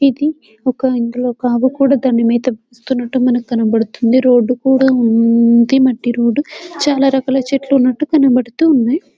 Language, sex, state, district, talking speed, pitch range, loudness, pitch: Telugu, female, Telangana, Karimnagar, 130 wpm, 240-270 Hz, -13 LUFS, 255 Hz